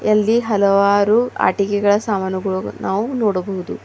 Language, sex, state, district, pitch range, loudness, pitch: Kannada, female, Karnataka, Bidar, 195-215 Hz, -17 LUFS, 205 Hz